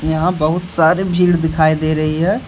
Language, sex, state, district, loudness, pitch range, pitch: Hindi, male, Jharkhand, Deoghar, -15 LUFS, 155-180 Hz, 160 Hz